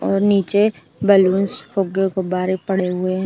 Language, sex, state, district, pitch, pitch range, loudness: Hindi, female, Uttar Pradesh, Budaun, 190 Hz, 185-200 Hz, -18 LUFS